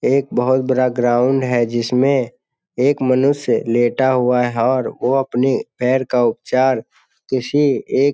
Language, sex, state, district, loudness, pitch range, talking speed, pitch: Hindi, male, Bihar, Jamui, -17 LUFS, 125-135 Hz, 145 wpm, 130 Hz